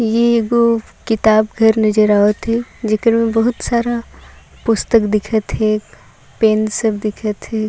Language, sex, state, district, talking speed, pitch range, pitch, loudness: Sadri, female, Chhattisgarh, Jashpur, 130 wpm, 215-230 Hz, 220 Hz, -16 LUFS